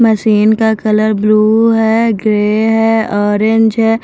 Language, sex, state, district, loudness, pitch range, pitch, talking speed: Hindi, female, Maharashtra, Mumbai Suburban, -11 LUFS, 215-225 Hz, 220 Hz, 135 wpm